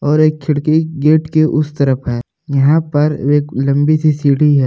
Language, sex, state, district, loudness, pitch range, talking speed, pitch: Hindi, male, Jharkhand, Palamu, -14 LUFS, 140-155 Hz, 195 wpm, 150 Hz